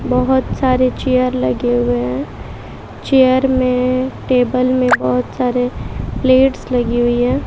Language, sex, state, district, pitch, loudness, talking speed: Hindi, female, Bihar, West Champaran, 250 Hz, -15 LUFS, 130 wpm